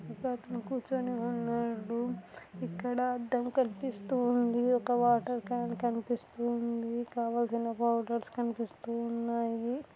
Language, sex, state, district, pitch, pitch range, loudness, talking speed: Telugu, female, Andhra Pradesh, Anantapur, 240 Hz, 235-245 Hz, -33 LUFS, 100 wpm